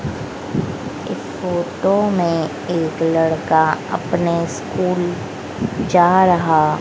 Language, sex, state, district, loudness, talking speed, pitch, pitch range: Hindi, female, Madhya Pradesh, Dhar, -18 LUFS, 80 wpm, 170 Hz, 160-180 Hz